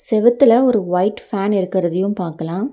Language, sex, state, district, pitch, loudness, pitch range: Tamil, female, Tamil Nadu, Nilgiris, 195 Hz, -17 LUFS, 180-230 Hz